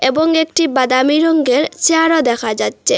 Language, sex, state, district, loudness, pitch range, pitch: Bengali, female, Assam, Hailakandi, -14 LUFS, 255-325 Hz, 310 Hz